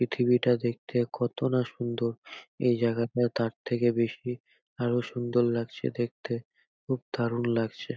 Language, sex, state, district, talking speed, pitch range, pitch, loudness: Bengali, male, West Bengal, North 24 Parganas, 130 wpm, 115-125 Hz, 120 Hz, -29 LUFS